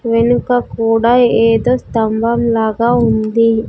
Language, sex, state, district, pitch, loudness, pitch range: Telugu, female, Andhra Pradesh, Sri Satya Sai, 230 Hz, -13 LUFS, 225-240 Hz